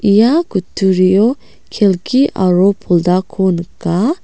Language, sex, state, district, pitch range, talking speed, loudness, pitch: Garo, female, Meghalaya, South Garo Hills, 185-225 Hz, 85 wpm, -13 LUFS, 190 Hz